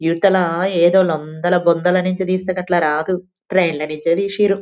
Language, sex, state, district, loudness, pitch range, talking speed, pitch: Telugu, female, Telangana, Nalgonda, -17 LUFS, 170-185 Hz, 130 wpm, 180 Hz